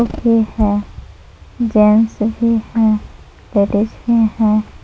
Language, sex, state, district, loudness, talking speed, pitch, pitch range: Hindi, female, Jharkhand, Palamu, -15 LUFS, 100 wpm, 220 Hz, 210-230 Hz